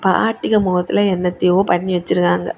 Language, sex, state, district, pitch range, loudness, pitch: Tamil, female, Tamil Nadu, Kanyakumari, 180-195 Hz, -16 LUFS, 180 Hz